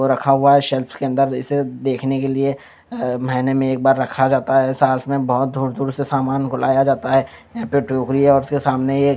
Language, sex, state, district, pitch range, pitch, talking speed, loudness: Hindi, male, Chandigarh, Chandigarh, 130-140 Hz, 135 Hz, 230 wpm, -18 LUFS